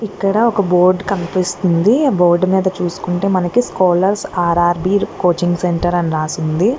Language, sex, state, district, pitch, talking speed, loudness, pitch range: Telugu, female, Andhra Pradesh, Guntur, 180 Hz, 140 wpm, -15 LUFS, 175-195 Hz